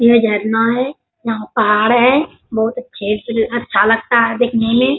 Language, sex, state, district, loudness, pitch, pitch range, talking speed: Hindi, female, Bihar, Bhagalpur, -15 LUFS, 230 Hz, 220-245 Hz, 180 wpm